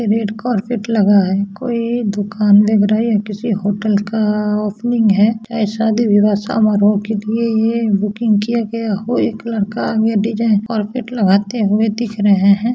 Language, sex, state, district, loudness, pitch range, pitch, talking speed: Bhojpuri, male, Bihar, Saran, -16 LUFS, 205-230 Hz, 215 Hz, 160 wpm